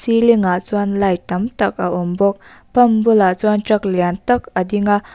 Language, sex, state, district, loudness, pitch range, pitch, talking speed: Mizo, female, Mizoram, Aizawl, -16 LUFS, 180-220 Hz, 205 Hz, 210 wpm